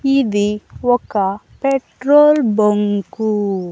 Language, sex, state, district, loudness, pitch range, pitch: Telugu, female, Andhra Pradesh, Annamaya, -16 LUFS, 205-270 Hz, 215 Hz